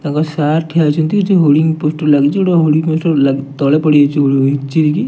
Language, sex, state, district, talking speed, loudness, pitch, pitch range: Odia, male, Odisha, Nuapada, 175 wpm, -13 LUFS, 155 Hz, 145-160 Hz